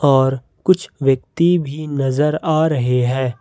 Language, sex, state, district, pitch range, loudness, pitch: Hindi, male, Jharkhand, Ranchi, 130-155 Hz, -17 LUFS, 140 Hz